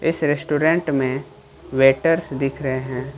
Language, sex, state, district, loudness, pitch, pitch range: Hindi, male, Jharkhand, Ranchi, -20 LUFS, 140 Hz, 135-155 Hz